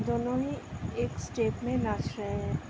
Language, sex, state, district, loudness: Hindi, female, Uttar Pradesh, Hamirpur, -32 LUFS